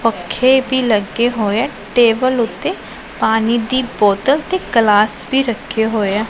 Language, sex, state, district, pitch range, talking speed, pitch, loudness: Punjabi, female, Punjab, Pathankot, 215-255 Hz, 145 wpm, 230 Hz, -15 LUFS